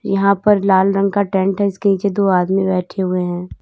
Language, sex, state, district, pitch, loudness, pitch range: Hindi, female, Uttar Pradesh, Lalitpur, 195 Hz, -16 LUFS, 185-200 Hz